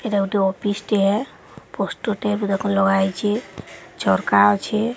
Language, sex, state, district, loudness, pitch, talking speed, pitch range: Odia, female, Odisha, Sambalpur, -20 LUFS, 200 Hz, 120 wpm, 195-210 Hz